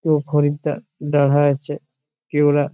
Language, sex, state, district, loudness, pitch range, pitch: Bengali, male, West Bengal, Malda, -19 LUFS, 145-150 Hz, 145 Hz